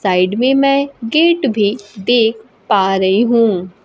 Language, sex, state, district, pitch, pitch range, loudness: Hindi, female, Bihar, Kaimur, 225 Hz, 195-260 Hz, -14 LUFS